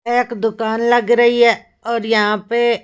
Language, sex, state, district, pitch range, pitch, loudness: Hindi, female, Haryana, Rohtak, 225-240 Hz, 235 Hz, -16 LUFS